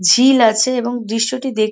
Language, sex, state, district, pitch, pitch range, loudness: Bengali, female, West Bengal, North 24 Parganas, 240 Hz, 220-255 Hz, -15 LUFS